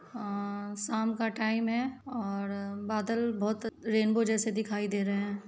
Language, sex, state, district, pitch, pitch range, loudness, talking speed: Hindi, female, Bihar, Muzaffarpur, 220 Hz, 205-225 Hz, -32 LUFS, 155 wpm